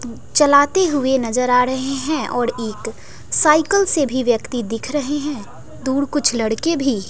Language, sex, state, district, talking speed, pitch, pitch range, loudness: Hindi, female, Bihar, West Champaran, 160 wpm, 270 Hz, 245-295 Hz, -18 LUFS